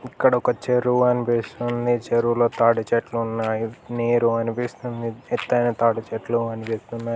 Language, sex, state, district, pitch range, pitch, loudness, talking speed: Telugu, male, Telangana, Nalgonda, 115-120 Hz, 115 Hz, -22 LUFS, 115 wpm